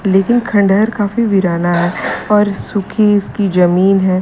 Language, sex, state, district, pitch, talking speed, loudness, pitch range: Hindi, female, Uttar Pradesh, Lalitpur, 200 Hz, 140 wpm, -13 LUFS, 185-210 Hz